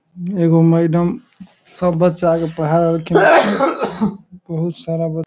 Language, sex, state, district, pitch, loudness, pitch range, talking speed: Maithili, male, Bihar, Samastipur, 170 Hz, -16 LUFS, 165-180 Hz, 115 wpm